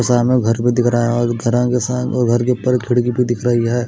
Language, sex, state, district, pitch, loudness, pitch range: Hindi, male, Odisha, Malkangiri, 120 Hz, -16 LUFS, 120-125 Hz